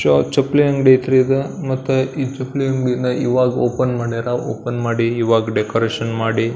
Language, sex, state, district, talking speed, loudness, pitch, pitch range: Kannada, male, Karnataka, Belgaum, 165 wpm, -17 LUFS, 125 Hz, 115-130 Hz